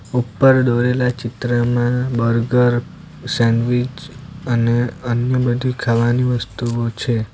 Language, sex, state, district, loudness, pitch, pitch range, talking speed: Gujarati, male, Gujarat, Valsad, -18 LUFS, 120 Hz, 120-125 Hz, 90 wpm